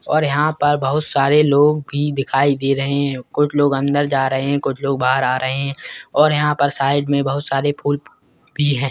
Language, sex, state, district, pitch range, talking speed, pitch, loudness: Hindi, male, Rajasthan, Nagaur, 135-145 Hz, 220 wpm, 140 Hz, -18 LUFS